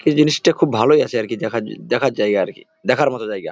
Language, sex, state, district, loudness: Bengali, male, West Bengal, Jalpaiguri, -18 LUFS